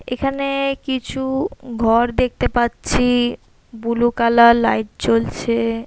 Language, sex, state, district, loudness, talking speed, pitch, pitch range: Bengali, female, West Bengal, Purulia, -18 LUFS, 100 wpm, 235 Hz, 230-255 Hz